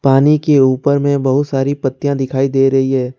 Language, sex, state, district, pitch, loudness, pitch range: Hindi, male, Jharkhand, Ranchi, 135 Hz, -14 LUFS, 135-140 Hz